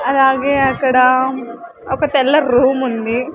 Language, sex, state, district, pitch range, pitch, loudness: Telugu, female, Andhra Pradesh, Sri Satya Sai, 255-275 Hz, 265 Hz, -14 LUFS